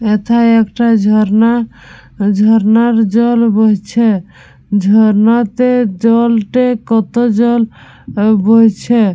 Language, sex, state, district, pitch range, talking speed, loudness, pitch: Bengali, female, West Bengal, Purulia, 215-235 Hz, 80 wpm, -11 LUFS, 225 Hz